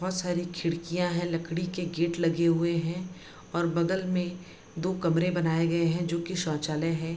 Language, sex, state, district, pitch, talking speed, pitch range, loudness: Hindi, female, Bihar, Bhagalpur, 170 Hz, 190 wpm, 165-180 Hz, -29 LUFS